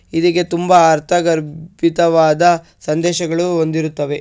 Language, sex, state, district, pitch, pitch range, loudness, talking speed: Kannada, male, Karnataka, Shimoga, 170 Hz, 160-175 Hz, -15 LUFS, 70 wpm